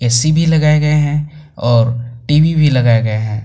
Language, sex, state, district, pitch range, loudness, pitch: Hindi, male, Jharkhand, Palamu, 120-150 Hz, -13 LUFS, 145 Hz